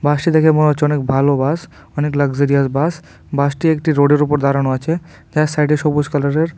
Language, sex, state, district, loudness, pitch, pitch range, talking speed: Bengali, male, Tripura, West Tripura, -16 LUFS, 150 Hz, 140-155 Hz, 180 wpm